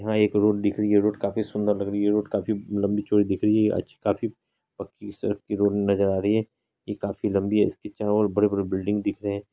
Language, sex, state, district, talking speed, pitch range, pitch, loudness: Hindi, female, Bihar, Araria, 245 wpm, 100-105 Hz, 105 Hz, -24 LUFS